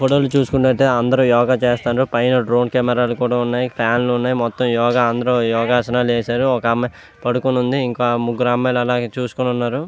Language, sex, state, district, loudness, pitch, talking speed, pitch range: Telugu, male, Andhra Pradesh, Visakhapatnam, -17 LUFS, 125 Hz, 170 wpm, 120-125 Hz